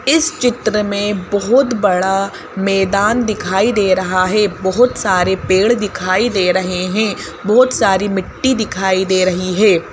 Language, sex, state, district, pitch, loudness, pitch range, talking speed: Hindi, female, Madhya Pradesh, Bhopal, 200 Hz, -15 LUFS, 185-220 Hz, 145 wpm